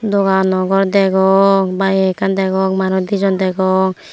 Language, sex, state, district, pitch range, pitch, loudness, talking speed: Chakma, female, Tripura, Unakoti, 190-195 Hz, 190 Hz, -14 LUFS, 145 wpm